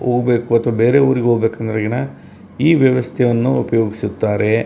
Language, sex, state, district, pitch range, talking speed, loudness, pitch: Kannada, male, Karnataka, Bellary, 110-125 Hz, 105 wpm, -16 LUFS, 120 Hz